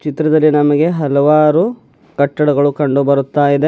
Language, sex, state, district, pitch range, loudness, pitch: Kannada, male, Karnataka, Bidar, 140-155 Hz, -13 LUFS, 150 Hz